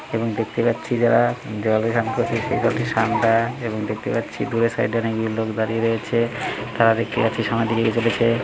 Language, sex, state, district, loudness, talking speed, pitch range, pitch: Bengali, male, West Bengal, Malda, -21 LUFS, 180 wpm, 110-115 Hz, 115 Hz